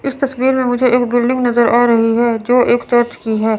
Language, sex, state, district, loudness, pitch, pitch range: Hindi, female, Chandigarh, Chandigarh, -14 LUFS, 240 Hz, 235-250 Hz